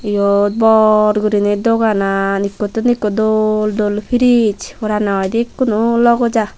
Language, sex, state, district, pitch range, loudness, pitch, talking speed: Chakma, female, Tripura, Dhalai, 205-230 Hz, -14 LUFS, 215 Hz, 125 wpm